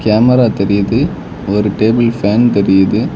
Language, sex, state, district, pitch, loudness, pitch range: Tamil, male, Tamil Nadu, Kanyakumari, 110 Hz, -12 LUFS, 100-120 Hz